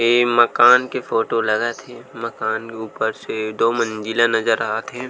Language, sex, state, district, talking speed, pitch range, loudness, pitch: Chhattisgarhi, male, Chhattisgarh, Rajnandgaon, 175 wpm, 110-120 Hz, -19 LUFS, 115 Hz